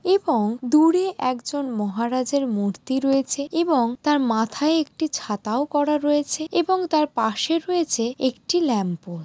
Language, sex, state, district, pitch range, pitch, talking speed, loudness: Bengali, female, West Bengal, Jalpaiguri, 230-315 Hz, 275 Hz, 125 wpm, -22 LUFS